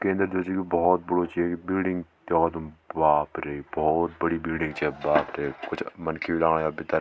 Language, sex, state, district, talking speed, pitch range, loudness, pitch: Garhwali, male, Uttarakhand, Tehri Garhwal, 195 wpm, 80-90 Hz, -26 LUFS, 85 Hz